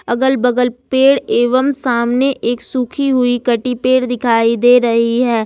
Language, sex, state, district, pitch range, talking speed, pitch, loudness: Hindi, female, Jharkhand, Ranchi, 235-255 Hz, 145 wpm, 245 Hz, -14 LUFS